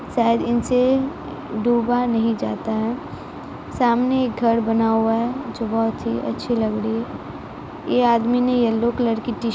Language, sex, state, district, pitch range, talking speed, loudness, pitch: Hindi, female, Bihar, Araria, 225-245 Hz, 170 wpm, -21 LUFS, 235 Hz